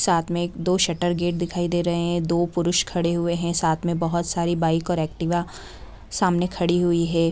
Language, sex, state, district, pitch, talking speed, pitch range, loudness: Hindi, female, Bihar, Purnia, 170 Hz, 215 wpm, 170-175 Hz, -23 LUFS